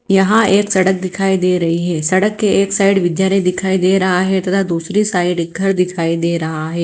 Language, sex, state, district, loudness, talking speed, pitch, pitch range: Hindi, female, Bihar, Katihar, -15 LUFS, 220 wpm, 185 Hz, 175-195 Hz